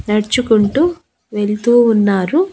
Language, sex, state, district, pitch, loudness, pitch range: Telugu, female, Andhra Pradesh, Annamaya, 220 Hz, -14 LUFS, 210-250 Hz